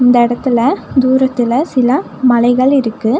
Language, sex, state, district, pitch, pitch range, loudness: Tamil, female, Tamil Nadu, Nilgiris, 250 Hz, 240-260 Hz, -12 LUFS